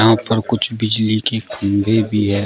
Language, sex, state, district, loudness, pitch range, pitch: Hindi, male, Uttar Pradesh, Shamli, -17 LUFS, 105-115 Hz, 110 Hz